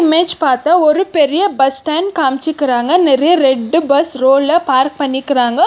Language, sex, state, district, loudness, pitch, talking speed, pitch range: Tamil, female, Karnataka, Bangalore, -13 LUFS, 295 Hz, 135 wpm, 270-330 Hz